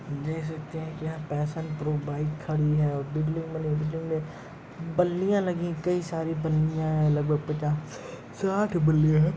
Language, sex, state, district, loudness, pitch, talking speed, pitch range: Hindi, male, Uttar Pradesh, Jyotiba Phule Nagar, -28 LUFS, 155 Hz, 155 wpm, 150-165 Hz